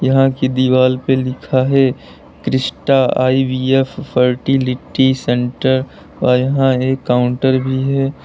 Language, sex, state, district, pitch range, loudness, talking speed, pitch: Hindi, male, Uttar Pradesh, Lalitpur, 130-135 Hz, -15 LUFS, 115 wpm, 130 Hz